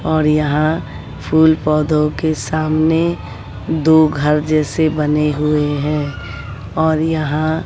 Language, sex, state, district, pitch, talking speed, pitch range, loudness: Hindi, female, Bihar, West Champaran, 155 Hz, 110 wpm, 150-160 Hz, -16 LUFS